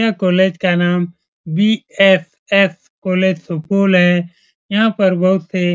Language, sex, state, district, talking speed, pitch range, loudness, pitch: Hindi, male, Bihar, Supaul, 135 wpm, 175-195 Hz, -15 LUFS, 185 Hz